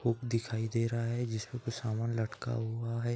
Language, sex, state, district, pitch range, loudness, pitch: Hindi, male, Uttar Pradesh, Etah, 115-120 Hz, -35 LUFS, 115 Hz